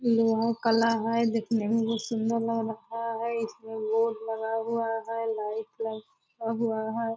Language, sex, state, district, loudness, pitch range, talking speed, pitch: Hindi, female, Bihar, Purnia, -29 LUFS, 225-230 Hz, 160 wpm, 225 Hz